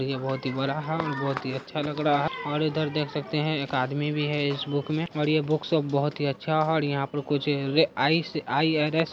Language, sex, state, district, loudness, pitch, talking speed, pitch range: Hindi, male, Bihar, Araria, -26 LUFS, 150 Hz, 265 wpm, 140-155 Hz